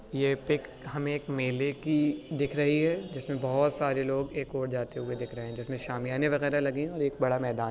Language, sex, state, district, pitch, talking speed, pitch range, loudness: Hindi, male, Uttar Pradesh, Budaun, 140 Hz, 235 wpm, 130-145 Hz, -30 LUFS